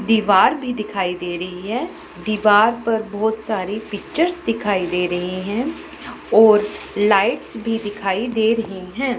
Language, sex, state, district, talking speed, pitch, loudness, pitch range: Hindi, female, Punjab, Pathankot, 145 wpm, 215 Hz, -19 LUFS, 195-225 Hz